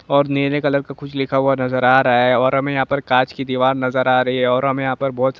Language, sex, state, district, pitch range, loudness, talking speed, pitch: Hindi, male, Jharkhand, Jamtara, 130-140 Hz, -17 LUFS, 310 wpm, 135 Hz